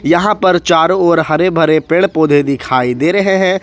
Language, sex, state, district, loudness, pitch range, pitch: Hindi, male, Jharkhand, Ranchi, -12 LUFS, 155-185 Hz, 170 Hz